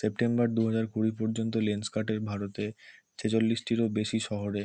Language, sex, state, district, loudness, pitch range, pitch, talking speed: Bengali, male, West Bengal, Kolkata, -30 LUFS, 105-115 Hz, 110 Hz, 140 wpm